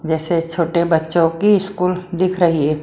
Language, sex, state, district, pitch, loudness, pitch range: Hindi, female, Maharashtra, Mumbai Suburban, 170 Hz, -17 LUFS, 165-180 Hz